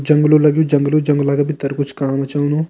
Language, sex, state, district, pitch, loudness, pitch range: Hindi, male, Uttarakhand, Tehri Garhwal, 145 Hz, -16 LUFS, 140-150 Hz